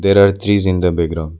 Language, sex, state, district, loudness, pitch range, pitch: English, male, Arunachal Pradesh, Lower Dibang Valley, -14 LUFS, 85-100 Hz, 95 Hz